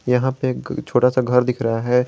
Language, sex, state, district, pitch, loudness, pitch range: Hindi, male, Jharkhand, Garhwa, 125 Hz, -19 LUFS, 125-130 Hz